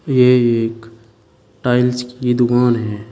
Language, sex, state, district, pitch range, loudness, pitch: Hindi, male, Uttar Pradesh, Shamli, 115-125 Hz, -16 LUFS, 120 Hz